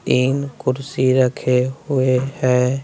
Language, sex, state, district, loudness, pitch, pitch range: Hindi, male, Bihar, West Champaran, -18 LUFS, 130 Hz, 125-135 Hz